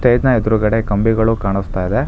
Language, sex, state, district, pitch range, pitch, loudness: Kannada, male, Karnataka, Bangalore, 100-120 Hz, 110 Hz, -16 LUFS